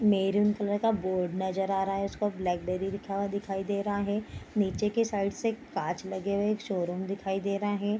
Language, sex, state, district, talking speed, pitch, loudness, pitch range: Hindi, female, Bihar, Bhagalpur, 225 wpm, 200 Hz, -30 LUFS, 195-205 Hz